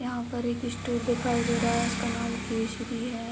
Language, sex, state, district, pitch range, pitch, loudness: Hindi, female, Uttar Pradesh, Ghazipur, 230-240 Hz, 235 Hz, -29 LUFS